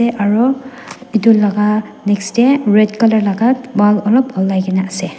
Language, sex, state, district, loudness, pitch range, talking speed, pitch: Nagamese, female, Nagaland, Dimapur, -14 LUFS, 205-235 Hz, 160 wpm, 215 Hz